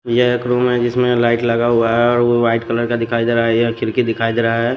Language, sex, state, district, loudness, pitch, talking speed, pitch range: Hindi, male, Maharashtra, Washim, -16 LUFS, 120 Hz, 300 wpm, 115-120 Hz